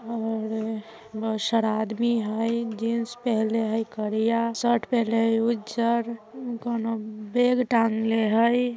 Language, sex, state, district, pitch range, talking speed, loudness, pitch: Bajjika, male, Bihar, Vaishali, 220-235 Hz, 115 wpm, -25 LUFS, 225 Hz